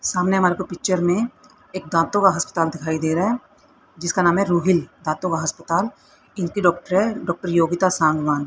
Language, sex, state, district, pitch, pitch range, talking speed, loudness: Hindi, female, Haryana, Rohtak, 175 Hz, 165-190 Hz, 190 wpm, -21 LUFS